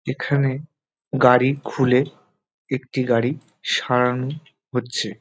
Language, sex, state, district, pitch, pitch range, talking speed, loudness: Bengali, male, West Bengal, North 24 Parganas, 130 Hz, 125-140 Hz, 80 wpm, -21 LUFS